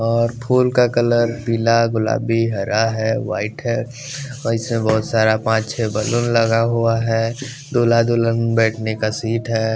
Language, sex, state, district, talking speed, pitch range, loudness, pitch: Hindi, male, Bihar, West Champaran, 160 wpm, 110-120 Hz, -18 LUFS, 115 Hz